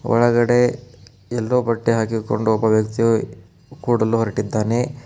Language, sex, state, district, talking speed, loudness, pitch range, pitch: Kannada, male, Karnataka, Koppal, 95 wpm, -19 LUFS, 110-120 Hz, 115 Hz